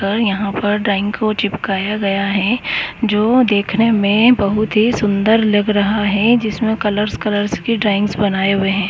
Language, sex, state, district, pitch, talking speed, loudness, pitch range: Hindi, male, West Bengal, Paschim Medinipur, 210 Hz, 170 wpm, -15 LUFS, 200-220 Hz